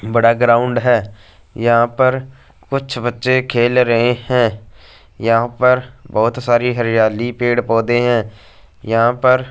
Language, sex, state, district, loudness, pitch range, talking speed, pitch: Hindi, male, Punjab, Fazilka, -15 LUFS, 115-125 Hz, 125 wpm, 120 Hz